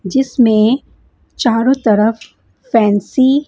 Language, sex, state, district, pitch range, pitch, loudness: Hindi, female, Punjab, Kapurthala, 215-265 Hz, 235 Hz, -13 LUFS